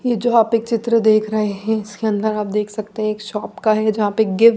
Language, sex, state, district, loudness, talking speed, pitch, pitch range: Hindi, female, Bihar, Patna, -18 LUFS, 275 wpm, 215 Hz, 210-225 Hz